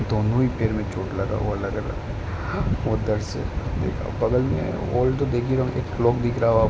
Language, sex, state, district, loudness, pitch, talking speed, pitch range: Hindi, male, Uttar Pradesh, Ghazipur, -24 LUFS, 110 Hz, 125 wpm, 100-120 Hz